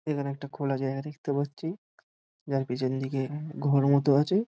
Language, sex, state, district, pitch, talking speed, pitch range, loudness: Bengali, male, West Bengal, Dakshin Dinajpur, 140 Hz, 185 wpm, 135-150 Hz, -29 LUFS